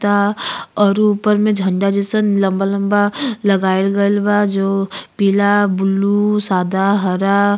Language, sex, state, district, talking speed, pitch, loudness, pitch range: Bhojpuri, female, Uttar Pradesh, Ghazipur, 140 wpm, 200 Hz, -15 LUFS, 195-205 Hz